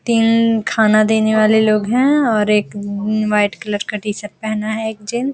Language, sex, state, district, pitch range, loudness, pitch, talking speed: Hindi, female, Bihar, Araria, 210-225 Hz, -16 LUFS, 215 Hz, 200 wpm